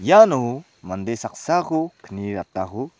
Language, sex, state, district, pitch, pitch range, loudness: Garo, male, Meghalaya, South Garo Hills, 120 Hz, 100-160 Hz, -21 LUFS